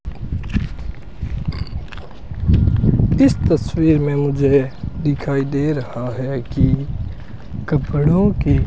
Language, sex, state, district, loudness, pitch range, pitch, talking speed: Hindi, male, Rajasthan, Bikaner, -18 LUFS, 120-145 Hz, 135 Hz, 85 wpm